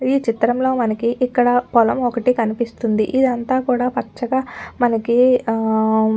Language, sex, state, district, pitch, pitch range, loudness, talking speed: Telugu, female, Telangana, Nalgonda, 245 Hz, 225-255 Hz, -18 LUFS, 105 wpm